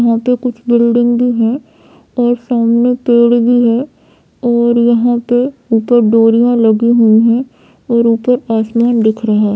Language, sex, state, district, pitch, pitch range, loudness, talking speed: Hindi, female, Bihar, Sitamarhi, 235 Hz, 230-245 Hz, -11 LUFS, 150 wpm